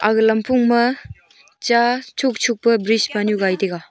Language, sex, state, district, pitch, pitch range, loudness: Wancho, female, Arunachal Pradesh, Longding, 230 Hz, 210-240 Hz, -18 LUFS